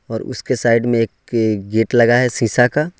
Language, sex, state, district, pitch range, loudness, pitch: Hindi, male, Jharkhand, Ranchi, 115-125 Hz, -16 LUFS, 120 Hz